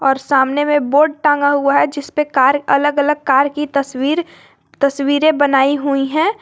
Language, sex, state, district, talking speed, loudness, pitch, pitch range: Hindi, female, Jharkhand, Garhwa, 170 wpm, -15 LUFS, 285 Hz, 275-295 Hz